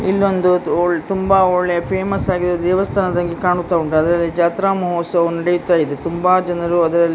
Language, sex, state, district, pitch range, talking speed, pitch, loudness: Kannada, female, Karnataka, Dakshina Kannada, 170-185 Hz, 150 wpm, 175 Hz, -17 LUFS